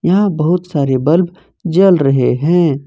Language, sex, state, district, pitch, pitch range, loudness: Hindi, male, Jharkhand, Ranchi, 170 Hz, 140-180 Hz, -13 LUFS